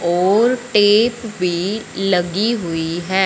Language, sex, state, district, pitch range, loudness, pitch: Hindi, male, Punjab, Fazilka, 175-220 Hz, -17 LUFS, 195 Hz